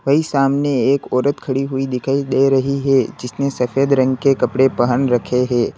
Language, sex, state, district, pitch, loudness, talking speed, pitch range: Hindi, male, Uttar Pradesh, Lalitpur, 135 Hz, -17 LUFS, 185 wpm, 125-140 Hz